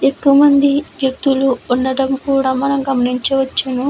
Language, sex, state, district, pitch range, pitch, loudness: Telugu, female, Andhra Pradesh, Visakhapatnam, 260-275 Hz, 270 Hz, -15 LUFS